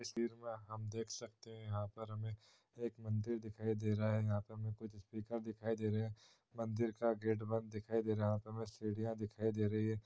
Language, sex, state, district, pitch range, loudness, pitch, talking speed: Hindi, male, Uttar Pradesh, Ghazipur, 110-115 Hz, -42 LUFS, 110 Hz, 240 wpm